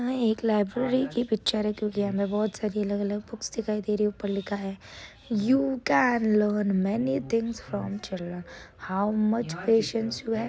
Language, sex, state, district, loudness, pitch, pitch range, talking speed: Marathi, female, Maharashtra, Sindhudurg, -27 LUFS, 215 Hz, 205-230 Hz, 185 wpm